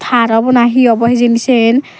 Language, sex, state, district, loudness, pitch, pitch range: Chakma, female, Tripura, Dhalai, -10 LUFS, 240 Hz, 230-250 Hz